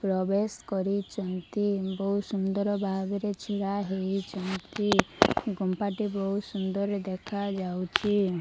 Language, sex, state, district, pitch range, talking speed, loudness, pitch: Odia, female, Odisha, Malkangiri, 190-205 Hz, 80 wpm, -29 LUFS, 195 Hz